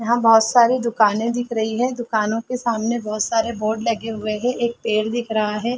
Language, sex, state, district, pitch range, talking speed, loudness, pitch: Hindi, female, Chhattisgarh, Bastar, 220-240 Hz, 220 wpm, -20 LUFS, 230 Hz